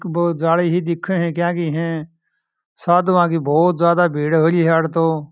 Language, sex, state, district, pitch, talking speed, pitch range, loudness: Marwari, male, Rajasthan, Churu, 170 Hz, 170 wpm, 165-175 Hz, -17 LUFS